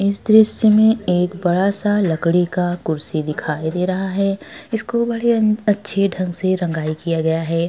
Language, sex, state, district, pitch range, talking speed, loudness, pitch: Hindi, female, Uttar Pradesh, Jalaun, 170-210 Hz, 170 wpm, -18 LUFS, 185 Hz